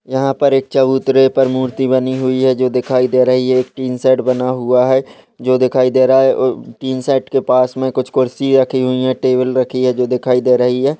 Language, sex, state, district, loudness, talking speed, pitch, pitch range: Hindi, male, Uttarakhand, Tehri Garhwal, -14 LUFS, 240 wpm, 130 Hz, 125-130 Hz